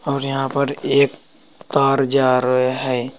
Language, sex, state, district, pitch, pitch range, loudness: Hindi, male, Uttar Pradesh, Saharanpur, 135 Hz, 130-140 Hz, -18 LUFS